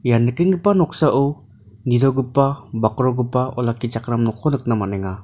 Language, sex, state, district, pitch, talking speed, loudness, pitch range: Garo, male, Meghalaya, North Garo Hills, 125 Hz, 105 wpm, -19 LUFS, 115-140 Hz